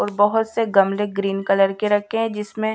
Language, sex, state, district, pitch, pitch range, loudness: Hindi, female, Odisha, Malkangiri, 205 Hz, 195-220 Hz, -20 LUFS